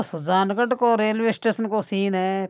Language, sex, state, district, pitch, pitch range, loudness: Marwari, male, Rajasthan, Nagaur, 215 Hz, 190-225 Hz, -22 LUFS